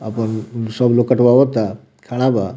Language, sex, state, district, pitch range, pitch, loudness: Bhojpuri, male, Bihar, Muzaffarpur, 110-125 Hz, 120 Hz, -16 LUFS